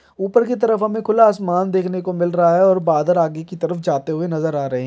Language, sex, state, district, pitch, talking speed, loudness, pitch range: Hindi, male, Bihar, Gaya, 180 Hz, 260 wpm, -18 LUFS, 165-195 Hz